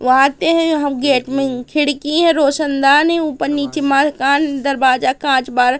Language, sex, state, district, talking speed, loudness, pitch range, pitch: Hindi, female, Madhya Pradesh, Katni, 175 wpm, -15 LUFS, 265-300 Hz, 280 Hz